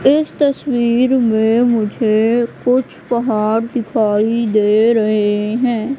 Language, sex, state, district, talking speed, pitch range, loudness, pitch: Hindi, female, Madhya Pradesh, Katni, 100 wpm, 220-250 Hz, -15 LUFS, 230 Hz